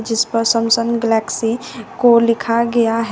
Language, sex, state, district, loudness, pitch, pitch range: Hindi, female, Uttar Pradesh, Shamli, -16 LUFS, 230 Hz, 225-235 Hz